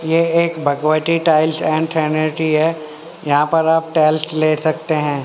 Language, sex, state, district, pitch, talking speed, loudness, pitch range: Hindi, male, Haryana, Rohtak, 155 Hz, 150 wpm, -16 LUFS, 155-160 Hz